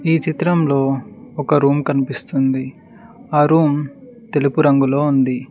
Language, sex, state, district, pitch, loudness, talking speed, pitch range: Telugu, male, Telangana, Mahabubabad, 145 Hz, -17 LUFS, 110 wpm, 135-160 Hz